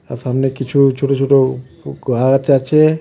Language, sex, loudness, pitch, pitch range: Bengali, male, -15 LUFS, 135 Hz, 130-140 Hz